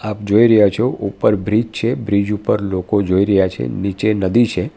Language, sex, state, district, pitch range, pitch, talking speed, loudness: Gujarati, male, Gujarat, Valsad, 95-110 Hz, 105 Hz, 200 wpm, -16 LUFS